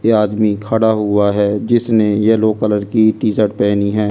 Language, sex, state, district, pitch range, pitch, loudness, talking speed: Hindi, male, Delhi, New Delhi, 105-110 Hz, 105 Hz, -14 LUFS, 175 wpm